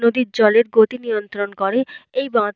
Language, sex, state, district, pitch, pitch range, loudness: Bengali, female, Jharkhand, Jamtara, 230 Hz, 210-250 Hz, -18 LUFS